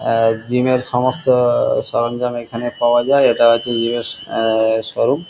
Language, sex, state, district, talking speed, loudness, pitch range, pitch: Bengali, male, West Bengal, Kolkata, 170 wpm, -16 LUFS, 115-125 Hz, 120 Hz